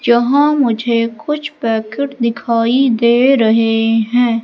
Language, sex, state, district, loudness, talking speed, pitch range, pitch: Hindi, female, Madhya Pradesh, Katni, -14 LUFS, 110 wpm, 230-270 Hz, 235 Hz